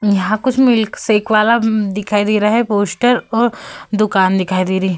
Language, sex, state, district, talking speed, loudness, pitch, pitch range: Hindi, female, Uttar Pradesh, Budaun, 195 wpm, -15 LUFS, 215 Hz, 200-225 Hz